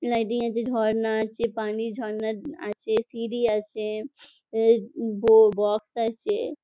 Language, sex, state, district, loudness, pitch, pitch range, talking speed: Bengali, female, West Bengal, Jhargram, -25 LUFS, 225 Hz, 215-235 Hz, 110 wpm